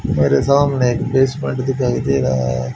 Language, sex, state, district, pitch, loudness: Hindi, male, Haryana, Jhajjar, 125 Hz, -17 LUFS